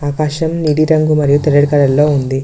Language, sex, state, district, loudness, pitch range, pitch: Telugu, female, Telangana, Mahabubabad, -12 LUFS, 145-155 Hz, 150 Hz